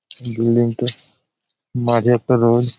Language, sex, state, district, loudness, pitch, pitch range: Bengali, male, West Bengal, Malda, -17 LUFS, 120 Hz, 115-120 Hz